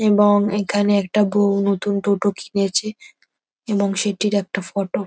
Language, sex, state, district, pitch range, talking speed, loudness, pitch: Bengali, female, West Bengal, North 24 Parganas, 200-210 Hz, 140 wpm, -19 LUFS, 205 Hz